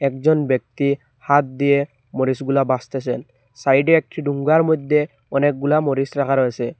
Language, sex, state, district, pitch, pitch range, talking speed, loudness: Bengali, male, Assam, Hailakandi, 140 Hz, 130-145 Hz, 130 wpm, -19 LUFS